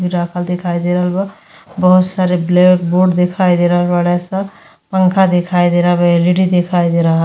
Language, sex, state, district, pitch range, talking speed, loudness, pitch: Bhojpuri, female, Uttar Pradesh, Gorakhpur, 175-185 Hz, 200 wpm, -13 LUFS, 180 Hz